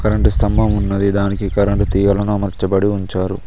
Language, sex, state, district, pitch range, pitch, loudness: Telugu, male, Telangana, Mahabubabad, 100-105 Hz, 100 Hz, -17 LUFS